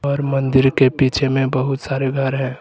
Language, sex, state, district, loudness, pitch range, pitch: Hindi, male, Jharkhand, Deoghar, -17 LUFS, 130-135 Hz, 135 Hz